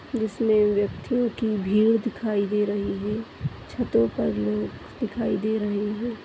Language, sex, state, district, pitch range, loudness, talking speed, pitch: Kumaoni, female, Uttarakhand, Tehri Garhwal, 205-225 Hz, -25 LUFS, 145 wpm, 215 Hz